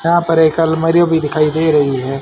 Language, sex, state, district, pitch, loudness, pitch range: Hindi, male, Haryana, Rohtak, 160 Hz, -13 LUFS, 150-165 Hz